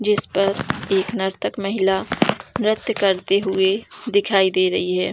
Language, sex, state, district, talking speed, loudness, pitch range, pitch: Hindi, female, Jharkhand, Jamtara, 140 wpm, -20 LUFS, 190-205 Hz, 195 Hz